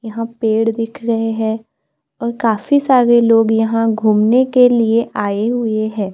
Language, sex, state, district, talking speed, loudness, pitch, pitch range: Hindi, female, Maharashtra, Gondia, 155 wpm, -15 LUFS, 225 Hz, 220-235 Hz